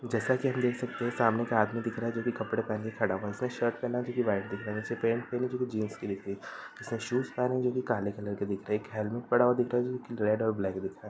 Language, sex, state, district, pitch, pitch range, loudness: Hindi, female, Bihar, East Champaran, 115 Hz, 105-125 Hz, -31 LUFS